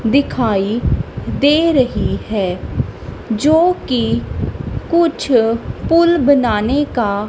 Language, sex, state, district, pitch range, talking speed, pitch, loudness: Hindi, female, Punjab, Kapurthala, 225-305 Hz, 80 wpm, 255 Hz, -16 LUFS